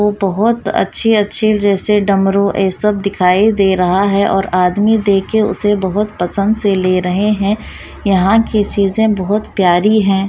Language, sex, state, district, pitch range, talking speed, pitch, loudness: Hindi, female, Bihar, Muzaffarpur, 195-210 Hz, 155 wpm, 200 Hz, -13 LUFS